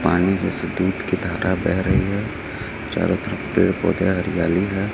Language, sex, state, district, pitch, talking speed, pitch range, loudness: Hindi, male, Chhattisgarh, Raipur, 95 Hz, 180 wpm, 90-100 Hz, -21 LUFS